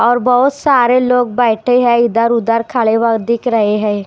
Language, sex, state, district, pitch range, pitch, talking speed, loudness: Hindi, female, Maharashtra, Washim, 230-250 Hz, 235 Hz, 190 wpm, -13 LUFS